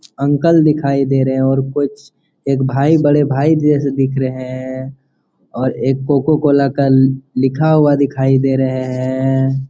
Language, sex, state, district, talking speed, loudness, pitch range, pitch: Hindi, male, Jharkhand, Jamtara, 155 wpm, -14 LUFS, 130-145 Hz, 135 Hz